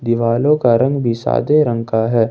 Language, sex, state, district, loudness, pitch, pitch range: Hindi, male, Jharkhand, Ranchi, -15 LUFS, 120 Hz, 115-135 Hz